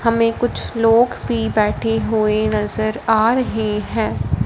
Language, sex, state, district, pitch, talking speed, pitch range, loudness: Hindi, female, Punjab, Fazilka, 220 Hz, 135 wpm, 210-230 Hz, -18 LUFS